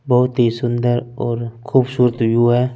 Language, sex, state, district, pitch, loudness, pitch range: Hindi, male, Punjab, Fazilka, 120 Hz, -17 LUFS, 120-125 Hz